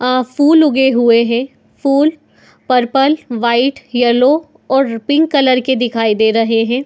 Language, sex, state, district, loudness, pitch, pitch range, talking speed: Hindi, female, Uttar Pradesh, Muzaffarnagar, -13 LUFS, 255 Hz, 235-280 Hz, 150 wpm